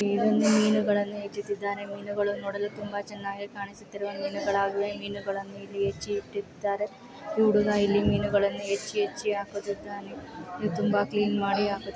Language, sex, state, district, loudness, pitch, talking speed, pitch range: Kannada, female, Karnataka, Chamarajanagar, -28 LUFS, 205 Hz, 125 wpm, 200-210 Hz